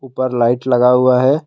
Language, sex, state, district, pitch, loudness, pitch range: Hindi, male, Assam, Kamrup Metropolitan, 125 Hz, -14 LUFS, 125-130 Hz